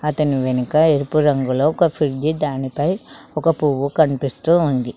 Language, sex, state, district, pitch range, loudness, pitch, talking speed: Telugu, female, Telangana, Mahabubabad, 135-155 Hz, -18 LUFS, 150 Hz, 135 wpm